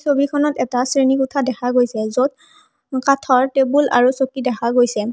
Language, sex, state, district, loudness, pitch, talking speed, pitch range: Assamese, female, Assam, Hailakandi, -17 LUFS, 265 Hz, 140 wpm, 245-275 Hz